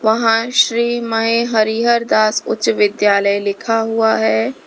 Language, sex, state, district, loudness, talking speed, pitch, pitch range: Hindi, female, Uttar Pradesh, Lalitpur, -15 LUFS, 130 wpm, 225 Hz, 210-235 Hz